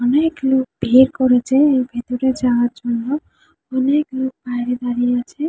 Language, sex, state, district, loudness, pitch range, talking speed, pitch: Bengali, female, West Bengal, Jhargram, -18 LUFS, 245-265 Hz, 155 wpm, 255 Hz